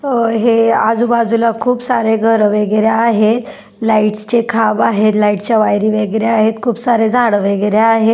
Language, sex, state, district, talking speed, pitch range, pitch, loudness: Marathi, female, Maharashtra, Dhule, 170 wpm, 215-230 Hz, 225 Hz, -13 LUFS